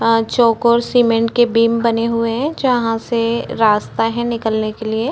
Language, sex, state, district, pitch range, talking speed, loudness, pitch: Hindi, female, Chhattisgarh, Korba, 225-235 Hz, 185 wpm, -16 LUFS, 230 Hz